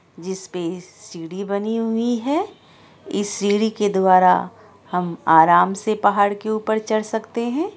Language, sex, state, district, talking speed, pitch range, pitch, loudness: Hindi, female, Bihar, Araria, 155 wpm, 185-220 Hz, 205 Hz, -19 LUFS